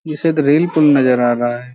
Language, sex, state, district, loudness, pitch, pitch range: Hindi, male, Uttar Pradesh, Hamirpur, -14 LUFS, 145 Hz, 125-155 Hz